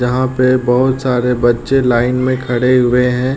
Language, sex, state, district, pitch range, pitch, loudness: Hindi, male, Uttar Pradesh, Deoria, 125-130 Hz, 125 Hz, -13 LUFS